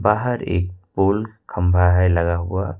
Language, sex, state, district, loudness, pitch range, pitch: Hindi, male, Jharkhand, Ranchi, -20 LUFS, 90-105 Hz, 90 Hz